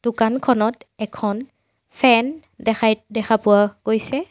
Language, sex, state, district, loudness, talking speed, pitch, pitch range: Assamese, female, Assam, Sonitpur, -19 LUFS, 95 wpm, 225 Hz, 215-250 Hz